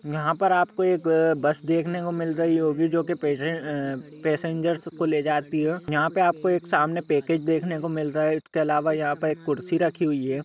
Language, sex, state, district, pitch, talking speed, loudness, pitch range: Hindi, male, Jharkhand, Sahebganj, 160 Hz, 205 wpm, -24 LUFS, 150-170 Hz